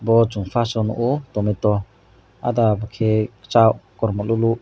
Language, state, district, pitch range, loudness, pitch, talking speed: Kokborok, Tripura, West Tripura, 105-115 Hz, -20 LUFS, 110 Hz, 140 wpm